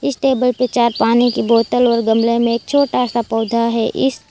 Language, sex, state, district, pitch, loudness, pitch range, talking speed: Hindi, female, Gujarat, Valsad, 235 Hz, -15 LUFS, 230-250 Hz, 220 wpm